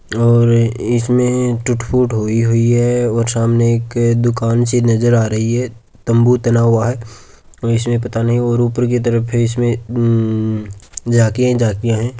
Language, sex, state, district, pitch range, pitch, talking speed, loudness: Marwari, male, Rajasthan, Churu, 115-120 Hz, 115 Hz, 165 wpm, -15 LUFS